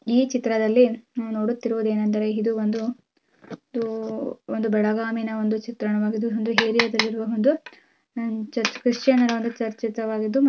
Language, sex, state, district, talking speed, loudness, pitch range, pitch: Kannada, female, Karnataka, Belgaum, 125 wpm, -24 LUFS, 220-240 Hz, 225 Hz